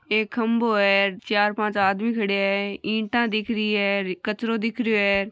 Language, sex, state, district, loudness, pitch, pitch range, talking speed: Marwari, female, Rajasthan, Nagaur, -23 LUFS, 210 Hz, 200-225 Hz, 180 wpm